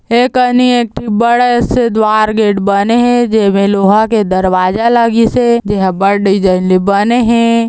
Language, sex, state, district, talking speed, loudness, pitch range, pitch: Chhattisgarhi, female, Chhattisgarh, Balrampur, 155 wpm, -10 LUFS, 200-235 Hz, 220 Hz